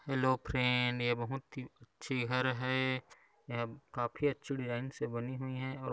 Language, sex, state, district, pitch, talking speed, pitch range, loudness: Hindi, male, Chhattisgarh, Kabirdham, 130 Hz, 170 wpm, 120-130 Hz, -35 LUFS